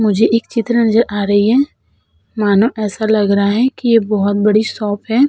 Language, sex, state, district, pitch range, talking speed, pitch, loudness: Hindi, female, Uttar Pradesh, Budaun, 205-230 Hz, 205 wpm, 215 Hz, -14 LUFS